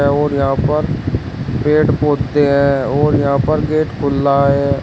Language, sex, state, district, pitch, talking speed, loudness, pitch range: Hindi, male, Uttar Pradesh, Shamli, 140 Hz, 150 wpm, -15 LUFS, 140-150 Hz